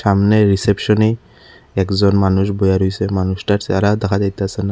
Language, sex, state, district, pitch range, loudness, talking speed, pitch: Bengali, male, Tripura, Unakoti, 95-105 Hz, -16 LUFS, 150 wpm, 100 Hz